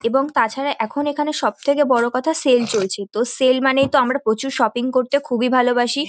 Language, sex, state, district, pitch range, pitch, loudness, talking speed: Bengali, female, West Bengal, North 24 Parganas, 240-280 Hz, 255 Hz, -18 LUFS, 175 wpm